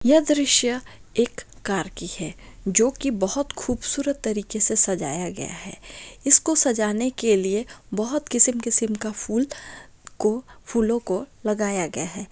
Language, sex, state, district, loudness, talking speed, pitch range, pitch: Maithili, female, Bihar, Darbhanga, -22 LUFS, 140 wpm, 210-260 Hz, 230 Hz